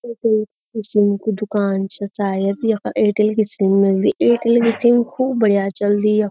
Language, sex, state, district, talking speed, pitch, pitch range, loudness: Garhwali, female, Uttarakhand, Uttarkashi, 190 wpm, 210 Hz, 200-230 Hz, -17 LUFS